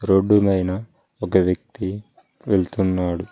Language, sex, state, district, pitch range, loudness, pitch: Telugu, male, Telangana, Mahabubabad, 90-100 Hz, -21 LUFS, 95 Hz